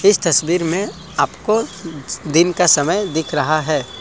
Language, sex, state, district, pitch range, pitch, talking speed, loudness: Hindi, male, Assam, Kamrup Metropolitan, 155-190 Hz, 165 Hz, 150 wpm, -17 LUFS